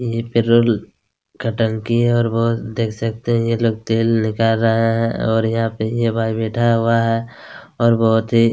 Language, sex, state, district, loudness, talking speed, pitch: Hindi, male, Chhattisgarh, Kabirdham, -18 LUFS, 190 wpm, 115 Hz